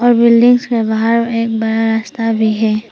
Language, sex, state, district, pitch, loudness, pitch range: Hindi, female, Arunachal Pradesh, Papum Pare, 225 Hz, -13 LUFS, 220-235 Hz